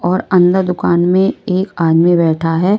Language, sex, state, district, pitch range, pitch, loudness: Hindi, female, Maharashtra, Washim, 170-185 Hz, 180 Hz, -13 LUFS